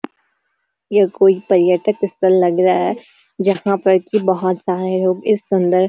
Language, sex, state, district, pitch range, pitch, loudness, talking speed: Hindi, female, Uttarakhand, Uttarkashi, 185-200 Hz, 190 Hz, -16 LUFS, 155 wpm